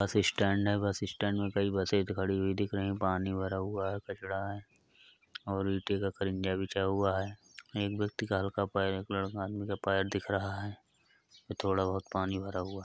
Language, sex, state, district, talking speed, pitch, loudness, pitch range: Hindi, male, Uttar Pradesh, Hamirpur, 210 wpm, 100 Hz, -33 LUFS, 95-100 Hz